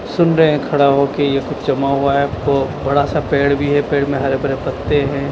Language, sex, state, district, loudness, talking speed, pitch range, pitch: Hindi, male, Chandigarh, Chandigarh, -16 LUFS, 250 wpm, 140-145 Hz, 140 Hz